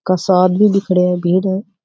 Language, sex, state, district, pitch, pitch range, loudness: Rajasthani, female, Rajasthan, Churu, 185 Hz, 180-190 Hz, -14 LUFS